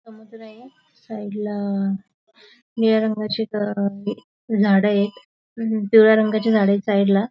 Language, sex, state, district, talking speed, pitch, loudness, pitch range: Marathi, female, Maharashtra, Aurangabad, 125 wpm, 215 Hz, -20 LUFS, 205-220 Hz